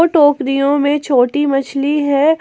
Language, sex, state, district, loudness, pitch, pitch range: Hindi, female, Jharkhand, Ranchi, -14 LUFS, 285 Hz, 275-295 Hz